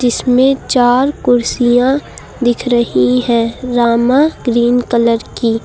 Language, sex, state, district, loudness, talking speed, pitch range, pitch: Hindi, female, Uttar Pradesh, Lucknow, -13 LUFS, 105 wpm, 235-255 Hz, 245 Hz